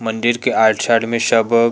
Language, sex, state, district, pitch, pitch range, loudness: Chhattisgarhi, male, Chhattisgarh, Rajnandgaon, 115 Hz, 110-115 Hz, -15 LUFS